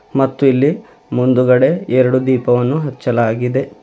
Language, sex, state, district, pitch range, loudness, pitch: Kannada, male, Karnataka, Bidar, 125-140 Hz, -15 LUFS, 130 Hz